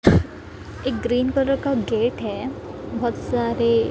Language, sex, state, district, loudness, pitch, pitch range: Hindi, female, Maharashtra, Gondia, -23 LUFS, 240 Hz, 235-260 Hz